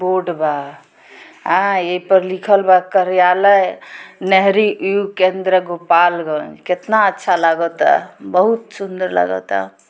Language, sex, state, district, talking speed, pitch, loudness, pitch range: Bhojpuri, female, Bihar, Gopalganj, 110 wpm, 185 Hz, -15 LUFS, 170-195 Hz